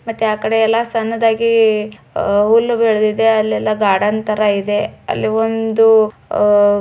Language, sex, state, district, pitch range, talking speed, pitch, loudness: Kannada, female, Karnataka, Bijapur, 210-225 Hz, 115 wpm, 220 Hz, -15 LUFS